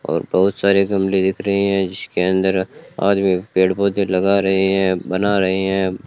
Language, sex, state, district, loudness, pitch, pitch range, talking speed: Hindi, male, Rajasthan, Bikaner, -17 LUFS, 95 Hz, 95-100 Hz, 180 wpm